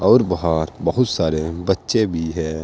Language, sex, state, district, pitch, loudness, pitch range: Hindi, male, Uttar Pradesh, Saharanpur, 85 Hz, -20 LUFS, 80-95 Hz